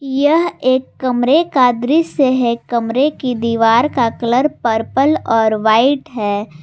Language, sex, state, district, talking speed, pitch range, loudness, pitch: Hindi, female, Jharkhand, Garhwa, 135 wpm, 230-280 Hz, -15 LUFS, 250 Hz